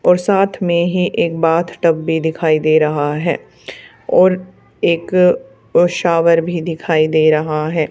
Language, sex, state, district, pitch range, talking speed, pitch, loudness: Hindi, female, Haryana, Charkhi Dadri, 155-180 Hz, 145 wpm, 165 Hz, -15 LUFS